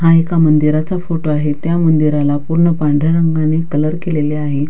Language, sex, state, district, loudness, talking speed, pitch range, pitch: Marathi, female, Maharashtra, Dhule, -14 LUFS, 165 wpm, 150-165 Hz, 155 Hz